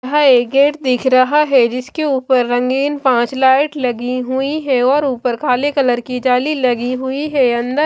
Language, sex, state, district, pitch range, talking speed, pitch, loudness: Hindi, female, Maharashtra, Washim, 250-280 Hz, 185 wpm, 260 Hz, -15 LUFS